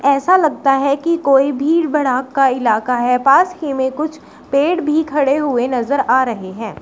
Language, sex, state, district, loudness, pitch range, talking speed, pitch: Hindi, female, Uttar Pradesh, Shamli, -15 LUFS, 255-300 Hz, 195 wpm, 275 Hz